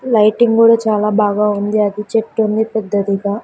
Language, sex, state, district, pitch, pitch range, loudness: Telugu, female, Andhra Pradesh, Sri Satya Sai, 215 Hz, 210-225 Hz, -14 LUFS